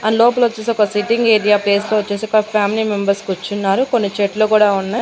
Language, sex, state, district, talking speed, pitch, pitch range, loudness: Telugu, female, Andhra Pradesh, Annamaya, 190 wpm, 210 Hz, 205-220 Hz, -16 LUFS